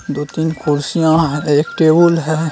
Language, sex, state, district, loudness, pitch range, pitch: Hindi, male, Bihar, Jamui, -14 LUFS, 145-160 Hz, 160 Hz